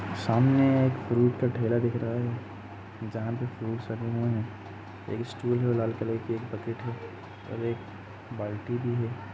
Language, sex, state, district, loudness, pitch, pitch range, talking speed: Hindi, male, Uttar Pradesh, Jalaun, -29 LUFS, 115 Hz, 105-120 Hz, 175 wpm